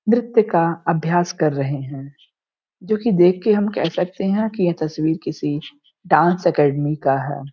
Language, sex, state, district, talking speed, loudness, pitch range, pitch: Hindi, male, Uttar Pradesh, Gorakhpur, 175 wpm, -19 LUFS, 145-195 Hz, 170 Hz